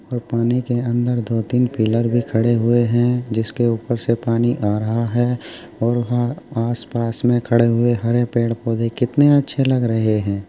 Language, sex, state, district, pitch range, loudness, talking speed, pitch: Hindi, male, Uttar Pradesh, Jyotiba Phule Nagar, 115-120 Hz, -19 LUFS, 175 wpm, 120 Hz